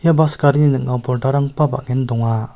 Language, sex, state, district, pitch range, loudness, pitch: Garo, male, Meghalaya, South Garo Hills, 125-150 Hz, -17 LUFS, 135 Hz